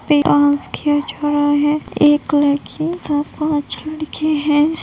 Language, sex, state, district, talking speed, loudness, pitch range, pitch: Hindi, female, Bihar, Begusarai, 135 wpm, -17 LUFS, 290-305 Hz, 295 Hz